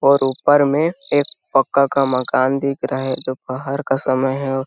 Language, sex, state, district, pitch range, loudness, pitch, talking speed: Hindi, male, Chhattisgarh, Sarguja, 130-140 Hz, -18 LUFS, 135 Hz, 180 wpm